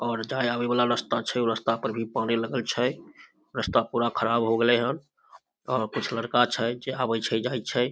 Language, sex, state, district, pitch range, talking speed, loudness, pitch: Maithili, male, Bihar, Samastipur, 115-125 Hz, 205 wpm, -26 LUFS, 120 Hz